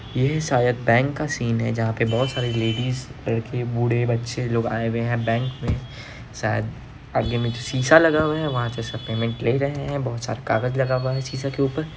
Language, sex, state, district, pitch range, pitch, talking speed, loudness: Hindi, male, Bihar, Araria, 115-135 Hz, 125 Hz, 200 wpm, -23 LUFS